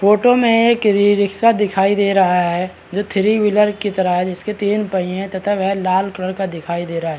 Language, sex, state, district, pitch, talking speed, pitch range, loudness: Hindi, male, Bihar, Araria, 195 Hz, 235 wpm, 185-210 Hz, -16 LUFS